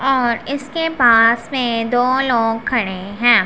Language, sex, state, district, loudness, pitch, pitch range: Hindi, female, Punjab, Pathankot, -16 LUFS, 240 Hz, 230-265 Hz